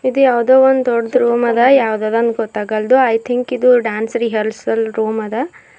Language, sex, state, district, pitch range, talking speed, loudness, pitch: Kannada, female, Karnataka, Bidar, 220-255 Hz, 155 wpm, -15 LUFS, 235 Hz